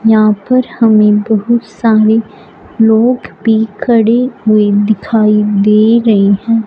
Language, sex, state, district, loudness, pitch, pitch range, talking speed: Hindi, female, Punjab, Fazilka, -10 LUFS, 220 Hz, 210-230 Hz, 115 wpm